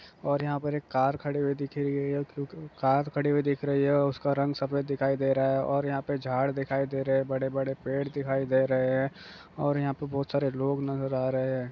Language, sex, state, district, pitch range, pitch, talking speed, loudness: Hindi, male, Bihar, Gopalganj, 135-140 Hz, 140 Hz, 275 wpm, -29 LUFS